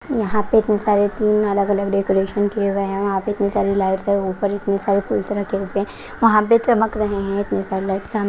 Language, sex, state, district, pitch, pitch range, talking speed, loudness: Hindi, female, Punjab, Kapurthala, 200 Hz, 195-210 Hz, 225 wpm, -19 LUFS